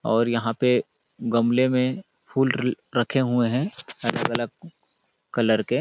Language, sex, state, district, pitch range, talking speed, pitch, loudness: Hindi, male, Chhattisgarh, Balrampur, 115-130 Hz, 135 wpm, 125 Hz, -24 LUFS